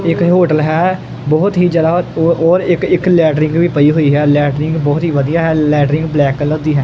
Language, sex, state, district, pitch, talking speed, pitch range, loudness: Punjabi, male, Punjab, Kapurthala, 160 Hz, 230 wpm, 150-170 Hz, -12 LUFS